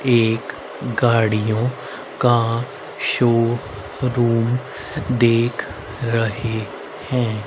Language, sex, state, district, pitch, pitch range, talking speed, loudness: Hindi, male, Haryana, Rohtak, 115 Hz, 110-125 Hz, 55 wpm, -20 LUFS